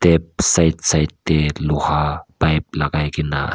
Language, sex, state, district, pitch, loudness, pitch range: Nagamese, male, Nagaland, Kohima, 75 Hz, -18 LUFS, 75-80 Hz